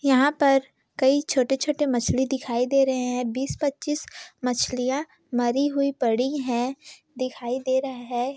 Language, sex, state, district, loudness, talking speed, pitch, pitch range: Hindi, female, Bihar, Kishanganj, -24 LUFS, 145 wpm, 265 Hz, 250-280 Hz